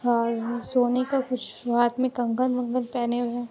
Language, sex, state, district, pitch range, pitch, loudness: Hindi, female, Bihar, Muzaffarpur, 240-250 Hz, 245 Hz, -25 LUFS